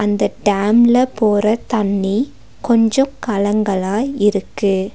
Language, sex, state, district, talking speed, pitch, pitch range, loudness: Tamil, female, Tamil Nadu, Nilgiris, 85 wpm, 210 Hz, 200-235 Hz, -16 LUFS